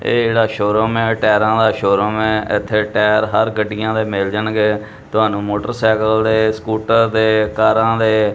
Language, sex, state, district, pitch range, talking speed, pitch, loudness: Punjabi, male, Punjab, Kapurthala, 105-110 Hz, 180 wpm, 110 Hz, -16 LUFS